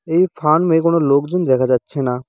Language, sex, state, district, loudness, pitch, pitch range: Bengali, male, West Bengal, Cooch Behar, -16 LUFS, 155 Hz, 130-170 Hz